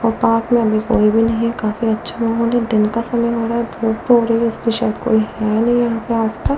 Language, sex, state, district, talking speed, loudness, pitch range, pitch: Hindi, female, Delhi, New Delhi, 265 wpm, -17 LUFS, 220-235 Hz, 230 Hz